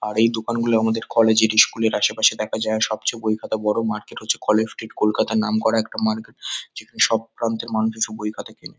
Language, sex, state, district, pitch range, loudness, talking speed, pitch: Bengali, male, West Bengal, Kolkata, 110-115 Hz, -21 LUFS, 230 wpm, 110 Hz